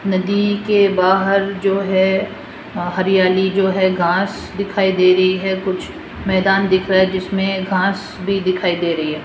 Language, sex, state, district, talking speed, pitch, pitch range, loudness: Hindi, female, Rajasthan, Jaipur, 160 wpm, 190 Hz, 185-195 Hz, -17 LUFS